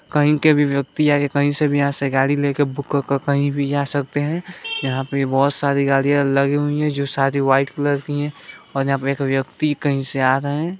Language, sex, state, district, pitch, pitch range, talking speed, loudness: Hindi, male, Bihar, Gaya, 140 Hz, 135-145 Hz, 235 wpm, -19 LUFS